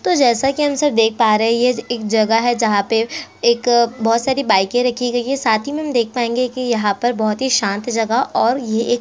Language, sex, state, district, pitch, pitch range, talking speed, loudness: Hindi, female, Chhattisgarh, Korba, 240 Hz, 225-250 Hz, 255 wpm, -17 LUFS